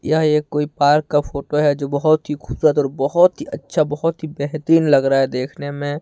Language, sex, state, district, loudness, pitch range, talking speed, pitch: Hindi, male, Jharkhand, Ranchi, -18 LUFS, 140-155 Hz, 230 wpm, 150 Hz